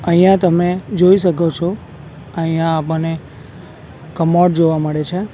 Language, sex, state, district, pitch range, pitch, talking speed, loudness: Gujarati, male, Gujarat, Valsad, 160-180 Hz, 170 Hz, 125 wpm, -15 LUFS